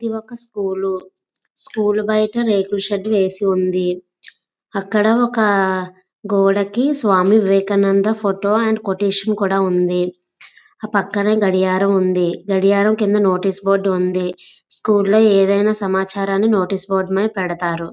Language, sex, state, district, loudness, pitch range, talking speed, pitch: Telugu, female, Andhra Pradesh, Visakhapatnam, -17 LUFS, 190-210 Hz, 115 wpm, 195 Hz